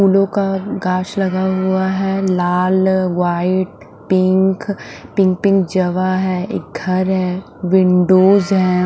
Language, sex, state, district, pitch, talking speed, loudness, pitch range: Hindi, male, Punjab, Fazilka, 190 Hz, 120 wpm, -16 LUFS, 185-195 Hz